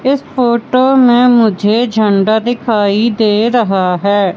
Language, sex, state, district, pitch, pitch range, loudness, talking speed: Hindi, female, Madhya Pradesh, Katni, 225 Hz, 205-245 Hz, -11 LUFS, 125 wpm